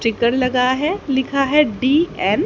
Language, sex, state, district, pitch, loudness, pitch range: Hindi, female, Haryana, Charkhi Dadri, 265 Hz, -17 LUFS, 250-295 Hz